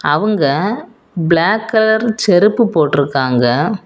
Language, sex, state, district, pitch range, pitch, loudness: Tamil, female, Tamil Nadu, Kanyakumari, 145-220 Hz, 180 Hz, -14 LUFS